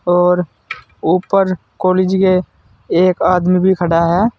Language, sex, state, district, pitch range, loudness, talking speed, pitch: Hindi, male, Uttar Pradesh, Saharanpur, 175-185 Hz, -14 LUFS, 125 wpm, 180 Hz